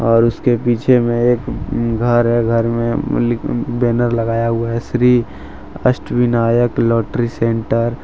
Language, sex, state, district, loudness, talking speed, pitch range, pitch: Hindi, male, Jharkhand, Deoghar, -16 LUFS, 155 wpm, 115-120 Hz, 120 Hz